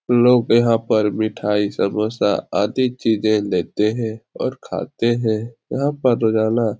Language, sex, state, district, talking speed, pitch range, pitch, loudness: Hindi, male, Bihar, Supaul, 140 wpm, 110-120 Hz, 110 Hz, -19 LUFS